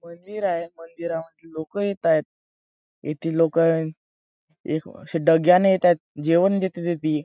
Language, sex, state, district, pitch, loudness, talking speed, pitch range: Marathi, male, Maharashtra, Chandrapur, 165 Hz, -22 LUFS, 115 wpm, 160-175 Hz